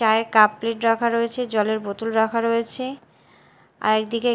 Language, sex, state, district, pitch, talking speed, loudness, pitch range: Bengali, female, Odisha, Malkangiri, 230 Hz, 150 wpm, -21 LUFS, 220-230 Hz